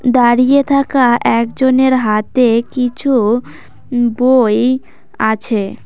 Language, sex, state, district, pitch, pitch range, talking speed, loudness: Bengali, female, West Bengal, Cooch Behar, 245 Hz, 230-260 Hz, 70 wpm, -13 LUFS